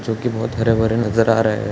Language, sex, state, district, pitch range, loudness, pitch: Hindi, male, Bihar, Sitamarhi, 110-115 Hz, -18 LUFS, 115 Hz